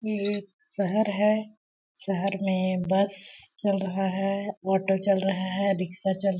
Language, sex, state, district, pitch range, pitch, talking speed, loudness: Hindi, female, Chhattisgarh, Balrampur, 190-205 Hz, 195 Hz, 160 wpm, -27 LUFS